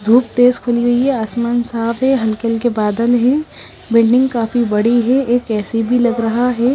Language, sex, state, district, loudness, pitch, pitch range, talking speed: Hindi, female, Bihar, West Champaran, -15 LUFS, 240 Hz, 230-245 Hz, 195 wpm